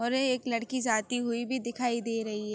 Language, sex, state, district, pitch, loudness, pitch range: Hindi, female, Uttar Pradesh, Gorakhpur, 235 Hz, -30 LUFS, 230-250 Hz